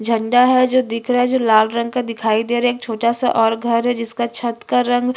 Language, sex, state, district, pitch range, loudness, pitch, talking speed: Hindi, female, Chhattisgarh, Bastar, 230-245 Hz, -17 LUFS, 235 Hz, 280 wpm